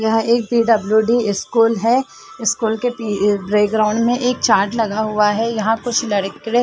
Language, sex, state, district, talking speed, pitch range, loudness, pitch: Hindi, female, Chhattisgarh, Bilaspur, 170 wpm, 210-235 Hz, -17 LUFS, 225 Hz